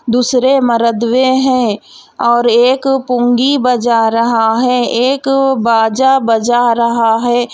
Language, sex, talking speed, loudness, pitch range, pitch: Hindi, female, 120 wpm, -12 LUFS, 235-260 Hz, 240 Hz